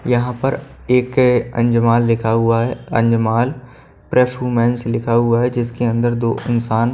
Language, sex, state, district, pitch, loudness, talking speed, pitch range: Hindi, male, Haryana, Charkhi Dadri, 120 Hz, -17 LUFS, 155 wpm, 115-125 Hz